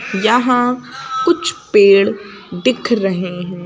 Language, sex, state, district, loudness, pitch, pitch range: Hindi, female, Madhya Pradesh, Bhopal, -15 LUFS, 245 Hz, 200-325 Hz